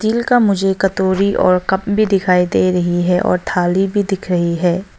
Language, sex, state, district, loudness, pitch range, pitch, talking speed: Hindi, female, Arunachal Pradesh, Longding, -15 LUFS, 180-200 Hz, 190 Hz, 205 wpm